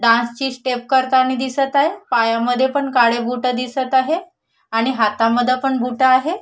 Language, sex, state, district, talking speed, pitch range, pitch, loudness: Marathi, female, Maharashtra, Solapur, 160 wpm, 240-265 Hz, 255 Hz, -17 LUFS